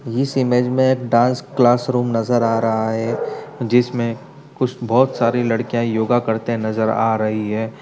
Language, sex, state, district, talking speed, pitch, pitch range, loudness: Hindi, male, Uttar Pradesh, Etah, 160 wpm, 120 Hz, 115-125 Hz, -18 LUFS